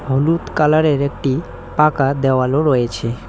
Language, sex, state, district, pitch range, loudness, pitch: Bengali, male, West Bengal, Cooch Behar, 130-150 Hz, -17 LUFS, 140 Hz